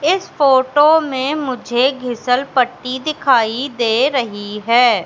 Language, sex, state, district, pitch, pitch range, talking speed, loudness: Hindi, female, Madhya Pradesh, Katni, 255 Hz, 240-280 Hz, 120 wpm, -16 LUFS